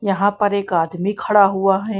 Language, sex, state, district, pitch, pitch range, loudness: Hindi, female, Punjab, Kapurthala, 200 Hz, 195-205 Hz, -17 LUFS